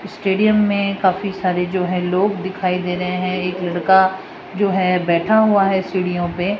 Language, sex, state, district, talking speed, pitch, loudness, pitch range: Hindi, female, Rajasthan, Jaipur, 180 wpm, 190 Hz, -18 LUFS, 180-200 Hz